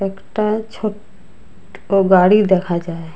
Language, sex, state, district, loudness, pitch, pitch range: Bengali, female, Assam, Hailakandi, -16 LUFS, 190 Hz, 170-210 Hz